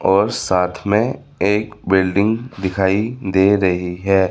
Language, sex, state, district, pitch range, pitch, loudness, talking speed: Hindi, male, Chandigarh, Chandigarh, 95-105 Hz, 95 Hz, -18 LUFS, 125 wpm